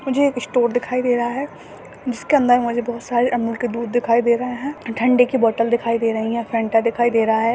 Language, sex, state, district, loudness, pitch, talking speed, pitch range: Hindi, male, Chhattisgarh, Bastar, -19 LUFS, 240 Hz, 245 wpm, 230-250 Hz